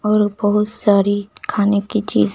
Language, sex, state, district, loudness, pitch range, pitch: Hindi, female, Uttar Pradesh, Lucknow, -17 LUFS, 200-210 Hz, 205 Hz